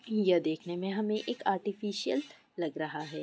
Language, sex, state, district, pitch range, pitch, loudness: Hindi, female, Goa, North and South Goa, 165-215 Hz, 195 Hz, -33 LUFS